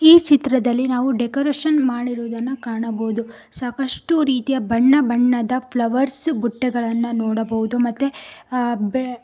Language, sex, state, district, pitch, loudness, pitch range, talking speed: Kannada, female, Karnataka, Koppal, 250 Hz, -19 LUFS, 235-270 Hz, 110 wpm